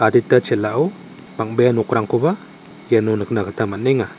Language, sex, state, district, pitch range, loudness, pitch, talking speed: Garo, male, Meghalaya, West Garo Hills, 100-120 Hz, -18 LUFS, 110 Hz, 100 wpm